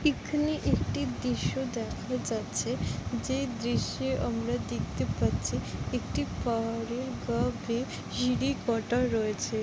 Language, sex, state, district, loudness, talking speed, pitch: Bengali, female, West Bengal, Jalpaiguri, -31 LUFS, 85 wpm, 225 Hz